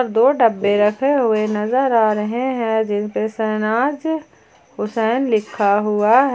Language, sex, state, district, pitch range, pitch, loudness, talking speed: Hindi, female, Jharkhand, Ranchi, 215-255 Hz, 220 Hz, -18 LUFS, 130 wpm